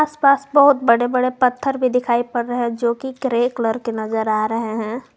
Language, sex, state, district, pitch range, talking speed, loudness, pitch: Hindi, female, Jharkhand, Garhwa, 230-260 Hz, 220 wpm, -18 LUFS, 245 Hz